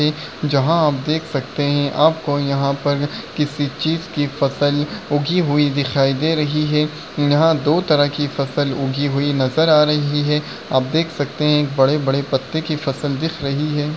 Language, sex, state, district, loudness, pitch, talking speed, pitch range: Hindi, male, Maharashtra, Solapur, -18 LUFS, 145 Hz, 170 wpm, 140-150 Hz